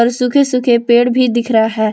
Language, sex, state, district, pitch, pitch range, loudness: Hindi, female, Jharkhand, Palamu, 240 Hz, 235-250 Hz, -13 LUFS